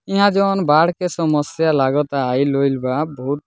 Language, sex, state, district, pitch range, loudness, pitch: Bhojpuri, male, Bihar, Muzaffarpur, 140-175 Hz, -17 LUFS, 150 Hz